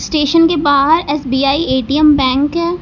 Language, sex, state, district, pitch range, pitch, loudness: Hindi, female, Uttar Pradesh, Lucknow, 275-325 Hz, 290 Hz, -13 LUFS